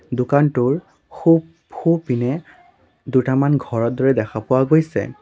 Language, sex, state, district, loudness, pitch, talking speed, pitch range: Assamese, male, Assam, Sonitpur, -19 LUFS, 135 Hz, 105 wpm, 125-155 Hz